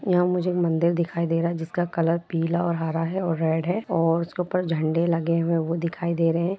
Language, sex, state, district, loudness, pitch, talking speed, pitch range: Hindi, female, Jharkhand, Jamtara, -24 LUFS, 170 Hz, 245 wpm, 165-175 Hz